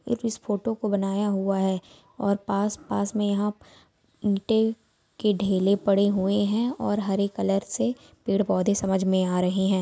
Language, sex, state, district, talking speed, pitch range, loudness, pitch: Hindi, female, Jharkhand, Sahebganj, 170 wpm, 195-210 Hz, -25 LUFS, 200 Hz